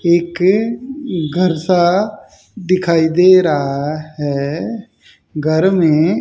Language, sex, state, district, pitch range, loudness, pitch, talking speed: Hindi, male, Haryana, Jhajjar, 155-190 Hz, -15 LUFS, 175 Hz, 85 wpm